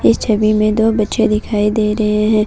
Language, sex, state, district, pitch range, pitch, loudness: Hindi, female, Assam, Kamrup Metropolitan, 210-215 Hz, 215 Hz, -14 LUFS